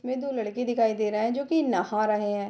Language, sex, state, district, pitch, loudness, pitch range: Hindi, female, Bihar, Darbhanga, 225 Hz, -26 LUFS, 210-255 Hz